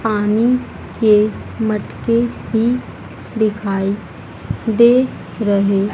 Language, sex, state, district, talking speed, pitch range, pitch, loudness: Hindi, female, Madhya Pradesh, Dhar, 70 wpm, 205-230 Hz, 215 Hz, -17 LUFS